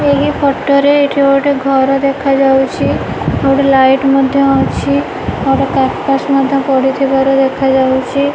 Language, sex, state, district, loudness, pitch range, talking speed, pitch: Odia, female, Odisha, Nuapada, -12 LUFS, 270-280 Hz, 130 wpm, 275 Hz